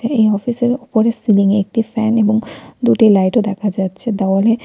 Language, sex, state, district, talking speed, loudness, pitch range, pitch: Bengali, female, West Bengal, Cooch Behar, 205 wpm, -15 LUFS, 205-230 Hz, 220 Hz